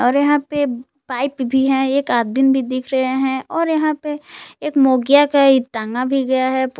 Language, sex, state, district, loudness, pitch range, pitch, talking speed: Hindi, female, Jharkhand, Palamu, -17 LUFS, 260-285 Hz, 265 Hz, 195 wpm